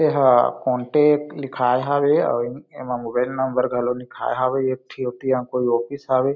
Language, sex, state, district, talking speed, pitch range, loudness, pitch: Chhattisgarhi, male, Chhattisgarh, Sarguja, 180 wpm, 125-135 Hz, -21 LUFS, 130 Hz